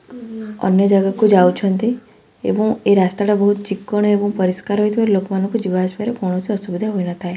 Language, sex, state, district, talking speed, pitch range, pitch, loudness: Odia, female, Odisha, Khordha, 145 wpm, 190-215 Hz, 205 Hz, -17 LUFS